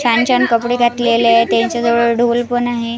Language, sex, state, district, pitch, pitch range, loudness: Marathi, female, Maharashtra, Washim, 235 Hz, 235-245 Hz, -14 LUFS